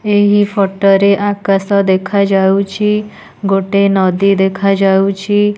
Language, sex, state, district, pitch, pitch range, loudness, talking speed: Odia, female, Odisha, Nuapada, 200 Hz, 195-205 Hz, -12 LUFS, 85 wpm